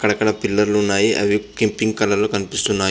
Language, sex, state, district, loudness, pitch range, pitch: Telugu, male, Andhra Pradesh, Visakhapatnam, -18 LUFS, 100-105 Hz, 105 Hz